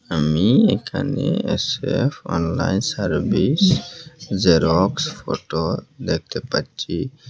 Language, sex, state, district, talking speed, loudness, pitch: Bengali, male, Assam, Hailakandi, 75 wpm, -20 LUFS, 125 Hz